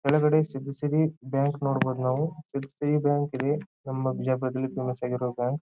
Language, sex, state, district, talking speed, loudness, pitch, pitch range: Kannada, male, Karnataka, Bijapur, 150 wpm, -28 LUFS, 140 Hz, 130-150 Hz